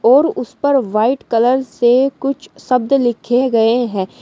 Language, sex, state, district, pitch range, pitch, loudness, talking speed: Hindi, female, Uttar Pradesh, Shamli, 235-275 Hz, 250 Hz, -15 LUFS, 155 wpm